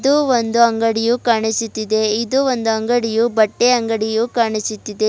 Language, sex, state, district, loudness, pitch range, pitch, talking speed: Kannada, female, Karnataka, Bidar, -17 LUFS, 220-240 Hz, 225 Hz, 120 wpm